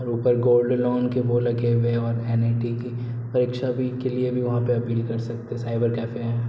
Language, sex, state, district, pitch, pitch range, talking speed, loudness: Hindi, male, Bihar, Araria, 120 Hz, 115-125 Hz, 220 wpm, -24 LUFS